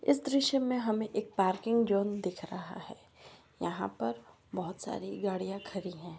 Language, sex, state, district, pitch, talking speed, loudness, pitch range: Marwari, female, Rajasthan, Churu, 200 Hz, 165 wpm, -33 LUFS, 185-220 Hz